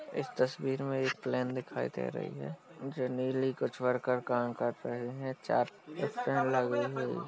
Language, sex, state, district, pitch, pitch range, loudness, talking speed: Hindi, male, Uttar Pradesh, Jalaun, 130 Hz, 125-130 Hz, -34 LUFS, 180 wpm